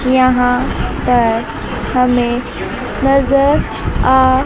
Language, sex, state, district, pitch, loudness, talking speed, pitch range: Hindi, female, Chandigarh, Chandigarh, 255 Hz, -14 LUFS, 65 wpm, 245-265 Hz